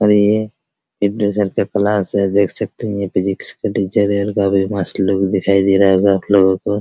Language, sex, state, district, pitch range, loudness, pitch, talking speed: Hindi, male, Bihar, Araria, 95-105 Hz, -16 LUFS, 100 Hz, 205 wpm